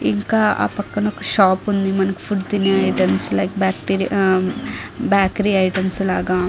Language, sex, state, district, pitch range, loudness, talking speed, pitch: Telugu, female, Andhra Pradesh, Guntur, 190-205 Hz, -18 LUFS, 95 wpm, 195 Hz